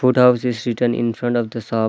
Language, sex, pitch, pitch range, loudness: English, male, 120 Hz, 115-125 Hz, -19 LUFS